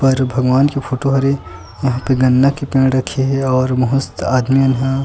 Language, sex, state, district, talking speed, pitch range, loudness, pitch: Chhattisgarhi, male, Chhattisgarh, Sukma, 225 wpm, 130-135 Hz, -15 LUFS, 130 Hz